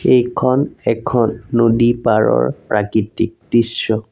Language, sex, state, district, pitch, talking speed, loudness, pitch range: Assamese, male, Assam, Sonitpur, 115 Hz, 75 wpm, -16 LUFS, 110-120 Hz